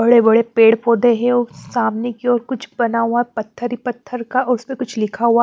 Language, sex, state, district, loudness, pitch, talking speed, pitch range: Hindi, female, Chandigarh, Chandigarh, -17 LUFS, 235 Hz, 220 wpm, 225-245 Hz